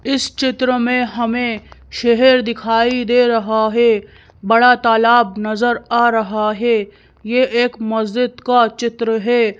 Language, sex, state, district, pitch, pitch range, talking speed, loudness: Hindi, female, Madhya Pradesh, Bhopal, 235 Hz, 225-245 Hz, 130 wpm, -15 LUFS